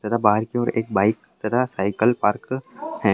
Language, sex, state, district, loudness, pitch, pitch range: Hindi, male, Bihar, Purnia, -22 LUFS, 115 Hz, 105-125 Hz